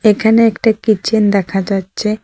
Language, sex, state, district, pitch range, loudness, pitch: Bengali, female, West Bengal, Cooch Behar, 200-220 Hz, -14 LUFS, 215 Hz